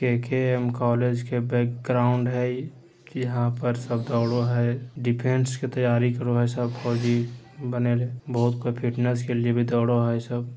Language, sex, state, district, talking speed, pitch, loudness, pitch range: Hindi, male, Bihar, Jamui, 175 wpm, 120 Hz, -25 LUFS, 120-125 Hz